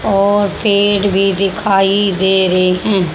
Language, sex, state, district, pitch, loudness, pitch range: Hindi, male, Haryana, Jhajjar, 195 Hz, -13 LUFS, 190-200 Hz